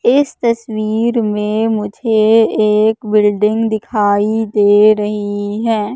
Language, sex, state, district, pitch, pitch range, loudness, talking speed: Hindi, female, Madhya Pradesh, Katni, 215 Hz, 210-225 Hz, -14 LUFS, 100 wpm